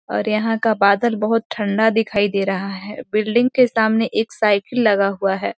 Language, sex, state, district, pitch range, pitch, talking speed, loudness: Hindi, female, Bihar, East Champaran, 200-225 Hz, 215 Hz, 195 wpm, -18 LUFS